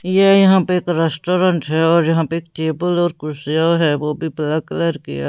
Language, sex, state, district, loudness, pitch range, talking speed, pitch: Hindi, female, Punjab, Pathankot, -17 LUFS, 155-175 Hz, 225 wpm, 165 Hz